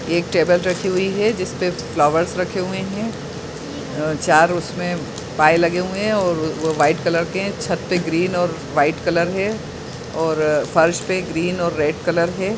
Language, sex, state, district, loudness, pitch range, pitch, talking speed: Hindi, male, Bihar, Muzaffarpur, -19 LUFS, 155-185 Hz, 170 Hz, 175 wpm